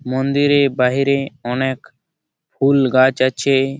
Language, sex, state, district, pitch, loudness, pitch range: Bengali, male, West Bengal, Malda, 135 Hz, -16 LUFS, 130-140 Hz